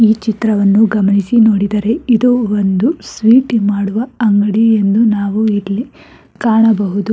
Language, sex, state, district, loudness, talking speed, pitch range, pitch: Kannada, female, Karnataka, Bangalore, -13 LUFS, 110 wpm, 205-230 Hz, 220 Hz